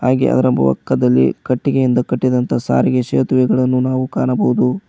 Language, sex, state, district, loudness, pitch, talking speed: Kannada, male, Karnataka, Koppal, -15 LUFS, 125 Hz, 110 wpm